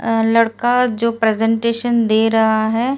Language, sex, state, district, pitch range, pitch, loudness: Hindi, female, Delhi, New Delhi, 225-235 Hz, 230 Hz, -16 LUFS